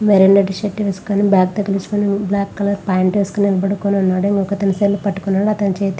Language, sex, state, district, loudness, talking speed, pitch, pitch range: Telugu, female, Andhra Pradesh, Visakhapatnam, -16 LUFS, 170 wpm, 200 Hz, 195-200 Hz